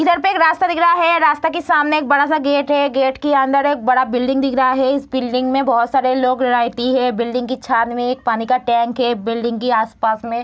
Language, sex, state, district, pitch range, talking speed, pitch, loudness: Hindi, female, Bihar, Kishanganj, 245-285 Hz, 270 wpm, 260 Hz, -16 LUFS